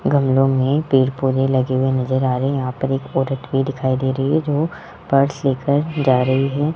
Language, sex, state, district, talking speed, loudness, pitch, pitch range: Hindi, male, Rajasthan, Jaipur, 215 wpm, -18 LUFS, 135 Hz, 130-140 Hz